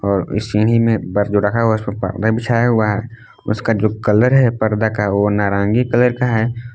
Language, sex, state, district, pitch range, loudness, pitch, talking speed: Hindi, male, Jharkhand, Palamu, 105-115 Hz, -16 LUFS, 110 Hz, 215 wpm